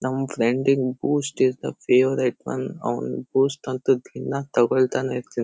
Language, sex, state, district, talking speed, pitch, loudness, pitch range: Kannada, male, Karnataka, Shimoga, 155 wpm, 130 Hz, -23 LUFS, 125-135 Hz